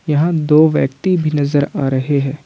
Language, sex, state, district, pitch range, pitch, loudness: Hindi, male, Jharkhand, Ranchi, 140-155 Hz, 150 Hz, -15 LUFS